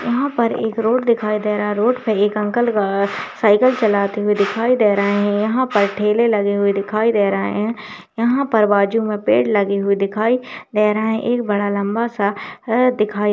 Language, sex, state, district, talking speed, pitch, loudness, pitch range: Hindi, female, Uttarakhand, Tehri Garhwal, 205 wpm, 210 Hz, -17 LUFS, 205-230 Hz